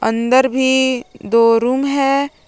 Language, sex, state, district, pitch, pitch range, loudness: Hindi, female, Jharkhand, Palamu, 260 Hz, 235-270 Hz, -15 LUFS